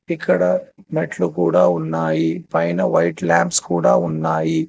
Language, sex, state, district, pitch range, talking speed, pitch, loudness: Telugu, male, Telangana, Hyderabad, 80-90 Hz, 115 wpm, 80 Hz, -18 LUFS